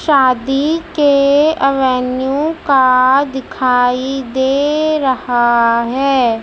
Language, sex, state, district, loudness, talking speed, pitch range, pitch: Hindi, male, Madhya Pradesh, Dhar, -13 LUFS, 75 wpm, 255-285 Hz, 265 Hz